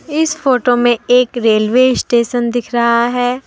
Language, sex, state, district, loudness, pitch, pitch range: Hindi, female, Jharkhand, Deoghar, -13 LUFS, 245 Hz, 235-255 Hz